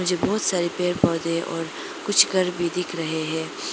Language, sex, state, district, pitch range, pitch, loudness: Hindi, female, Arunachal Pradesh, Lower Dibang Valley, 165-180 Hz, 170 Hz, -23 LUFS